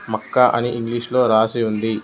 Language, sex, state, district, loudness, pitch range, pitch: Telugu, male, Telangana, Mahabubabad, -18 LUFS, 110-120 Hz, 120 Hz